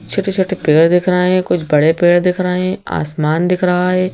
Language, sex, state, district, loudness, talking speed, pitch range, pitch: Hindi, female, Madhya Pradesh, Bhopal, -14 LUFS, 230 wpm, 165-185 Hz, 180 Hz